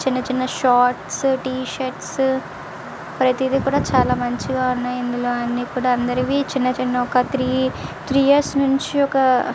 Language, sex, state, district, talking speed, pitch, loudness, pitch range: Telugu, female, Andhra Pradesh, Visakhapatnam, 100 wpm, 255 Hz, -20 LUFS, 250-265 Hz